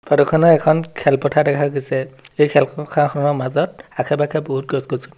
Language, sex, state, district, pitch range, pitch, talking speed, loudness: Assamese, male, Assam, Sonitpur, 135-150 Hz, 145 Hz, 140 wpm, -18 LUFS